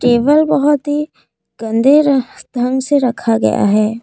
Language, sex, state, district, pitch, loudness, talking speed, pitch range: Hindi, female, Assam, Kamrup Metropolitan, 260 Hz, -14 LUFS, 135 wpm, 235-295 Hz